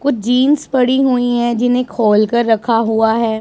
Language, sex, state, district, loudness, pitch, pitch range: Hindi, male, Punjab, Pathankot, -14 LUFS, 240 Hz, 225-255 Hz